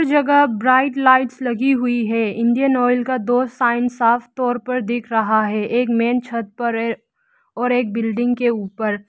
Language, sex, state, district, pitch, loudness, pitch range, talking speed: Hindi, female, Arunachal Pradesh, Lower Dibang Valley, 245 Hz, -18 LUFS, 230-255 Hz, 180 wpm